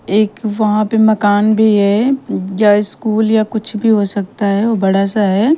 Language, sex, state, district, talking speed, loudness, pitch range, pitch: Hindi, female, Punjab, Kapurthala, 195 wpm, -14 LUFS, 205-220 Hz, 215 Hz